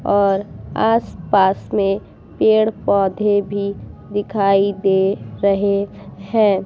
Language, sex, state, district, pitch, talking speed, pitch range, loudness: Hindi, female, Bihar, Vaishali, 200 Hz, 100 wpm, 195-205 Hz, -18 LUFS